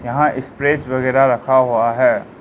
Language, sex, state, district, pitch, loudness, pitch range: Hindi, male, Arunachal Pradesh, Lower Dibang Valley, 130 Hz, -16 LUFS, 125-140 Hz